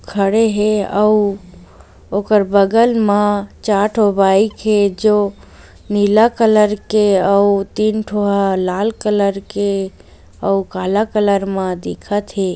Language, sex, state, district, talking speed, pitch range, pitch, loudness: Chhattisgarhi, female, Chhattisgarh, Raigarh, 130 wpm, 195-210 Hz, 205 Hz, -15 LUFS